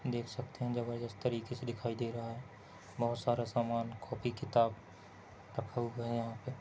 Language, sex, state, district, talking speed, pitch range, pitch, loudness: Hindi, male, Rajasthan, Churu, 170 wpm, 115-120 Hz, 120 Hz, -38 LUFS